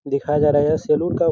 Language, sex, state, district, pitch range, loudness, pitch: Hindi, male, Bihar, Araria, 145-155 Hz, -18 LUFS, 150 Hz